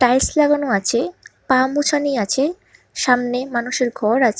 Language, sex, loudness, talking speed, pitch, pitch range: Bengali, male, -18 LUFS, 135 wpm, 255 Hz, 245-285 Hz